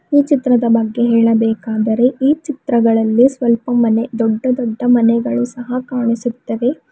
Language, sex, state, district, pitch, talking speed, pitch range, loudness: Kannada, female, Karnataka, Bidar, 240 Hz, 105 wpm, 230-250 Hz, -15 LUFS